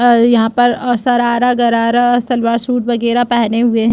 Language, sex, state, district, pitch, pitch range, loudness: Hindi, female, Chhattisgarh, Bastar, 240 Hz, 235-245 Hz, -13 LUFS